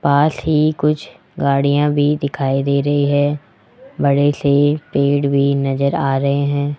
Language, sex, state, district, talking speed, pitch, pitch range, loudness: Hindi, male, Rajasthan, Jaipur, 150 wpm, 145 Hz, 140-145 Hz, -16 LUFS